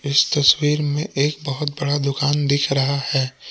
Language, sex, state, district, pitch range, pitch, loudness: Hindi, male, Jharkhand, Palamu, 140-145 Hz, 145 Hz, -19 LUFS